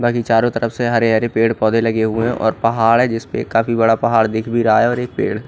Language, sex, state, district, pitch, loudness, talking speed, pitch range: Hindi, male, Odisha, Khordha, 115 Hz, -16 LUFS, 275 wpm, 115-120 Hz